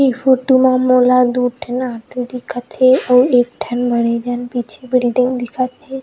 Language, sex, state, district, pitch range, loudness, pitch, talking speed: Chhattisgarhi, female, Chhattisgarh, Rajnandgaon, 245-255 Hz, -15 LUFS, 250 Hz, 190 wpm